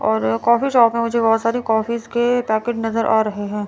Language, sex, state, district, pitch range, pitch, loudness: Hindi, female, Chandigarh, Chandigarh, 220-235 Hz, 225 Hz, -18 LUFS